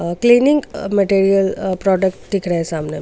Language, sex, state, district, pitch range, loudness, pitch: Hindi, female, Goa, North and South Goa, 175-200 Hz, -16 LUFS, 195 Hz